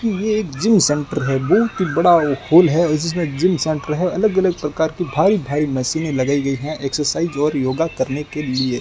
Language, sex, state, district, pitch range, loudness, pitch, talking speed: Hindi, male, Rajasthan, Bikaner, 145-175 Hz, -18 LUFS, 155 Hz, 190 wpm